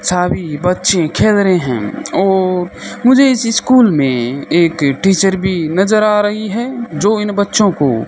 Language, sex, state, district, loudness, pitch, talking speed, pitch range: Hindi, male, Rajasthan, Bikaner, -13 LUFS, 190 Hz, 155 wpm, 165-215 Hz